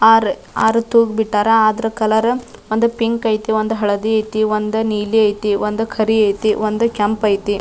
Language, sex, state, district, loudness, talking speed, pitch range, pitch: Kannada, female, Karnataka, Dharwad, -16 LUFS, 165 wpm, 210-225 Hz, 220 Hz